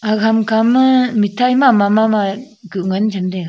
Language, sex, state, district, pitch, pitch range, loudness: Wancho, female, Arunachal Pradesh, Longding, 215 Hz, 200-245 Hz, -14 LUFS